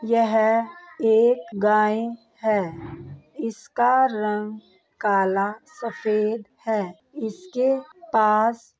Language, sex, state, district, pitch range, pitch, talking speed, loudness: Hindi, female, Bihar, Begusarai, 210-235 Hz, 220 Hz, 80 wpm, -23 LUFS